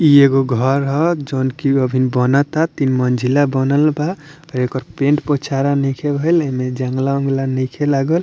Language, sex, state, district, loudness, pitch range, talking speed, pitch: Bhojpuri, male, Bihar, Muzaffarpur, -17 LUFS, 130-145 Hz, 170 wpm, 140 Hz